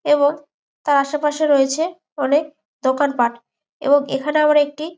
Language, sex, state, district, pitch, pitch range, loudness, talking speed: Bengali, female, West Bengal, Jalpaiguri, 290 Hz, 280-305 Hz, -18 LUFS, 130 wpm